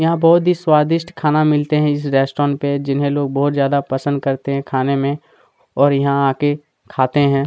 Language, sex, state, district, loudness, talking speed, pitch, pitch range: Hindi, male, Chhattisgarh, Kabirdham, -17 LUFS, 195 wpm, 145 Hz, 140-150 Hz